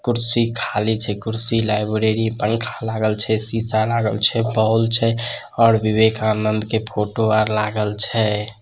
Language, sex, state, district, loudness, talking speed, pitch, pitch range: Maithili, male, Bihar, Samastipur, -19 LUFS, 140 wpm, 110 Hz, 110-115 Hz